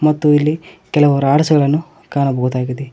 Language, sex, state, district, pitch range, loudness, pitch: Kannada, male, Karnataka, Koppal, 140-155 Hz, -15 LUFS, 145 Hz